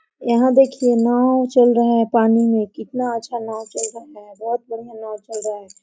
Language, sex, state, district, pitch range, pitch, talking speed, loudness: Hindi, female, Chhattisgarh, Korba, 220-245 Hz, 230 Hz, 205 wpm, -18 LUFS